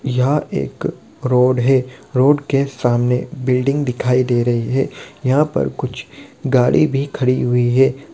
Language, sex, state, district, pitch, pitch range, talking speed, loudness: Hindi, male, Bihar, Gopalganj, 130 Hz, 125-135 Hz, 155 wpm, -17 LUFS